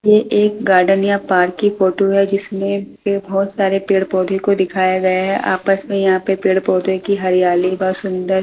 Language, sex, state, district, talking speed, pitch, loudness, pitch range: Hindi, female, Delhi, New Delhi, 185 wpm, 195 Hz, -16 LUFS, 185-200 Hz